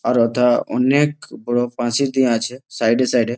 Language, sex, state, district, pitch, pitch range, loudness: Bengali, male, West Bengal, Malda, 125 Hz, 120-130 Hz, -18 LUFS